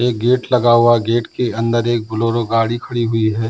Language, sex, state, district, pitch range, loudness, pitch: Hindi, male, Bihar, Samastipur, 115-120 Hz, -16 LUFS, 115 Hz